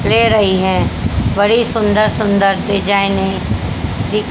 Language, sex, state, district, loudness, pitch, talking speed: Hindi, female, Haryana, Jhajjar, -14 LUFS, 195 Hz, 125 wpm